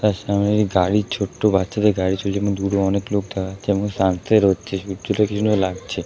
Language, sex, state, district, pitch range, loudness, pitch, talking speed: Bengali, male, West Bengal, Kolkata, 95-105 Hz, -20 LUFS, 100 Hz, 70 wpm